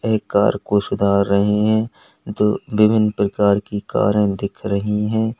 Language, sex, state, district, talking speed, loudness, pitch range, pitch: Hindi, male, Uttar Pradesh, Lalitpur, 155 wpm, -18 LUFS, 100-110 Hz, 105 Hz